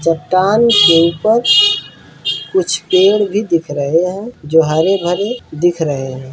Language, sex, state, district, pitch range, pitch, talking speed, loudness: Hindi, male, Uttar Pradesh, Varanasi, 160-205 Hz, 175 Hz, 140 wpm, -13 LUFS